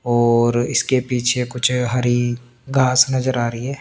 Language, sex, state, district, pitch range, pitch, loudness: Hindi, male, Chandigarh, Chandigarh, 120-130 Hz, 125 Hz, -18 LUFS